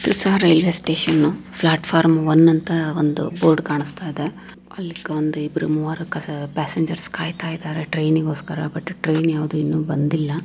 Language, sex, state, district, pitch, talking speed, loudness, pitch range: Kannada, female, Karnataka, Raichur, 160 Hz, 125 wpm, -19 LUFS, 155-165 Hz